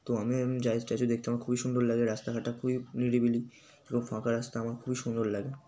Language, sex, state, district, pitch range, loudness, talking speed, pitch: Bengali, male, West Bengal, Kolkata, 115-125 Hz, -32 LUFS, 220 wpm, 120 Hz